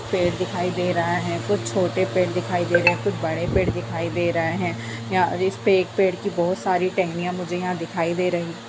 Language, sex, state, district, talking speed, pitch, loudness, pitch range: Hindi, female, Bihar, Darbhanga, 205 wpm, 175 Hz, -23 LUFS, 170-180 Hz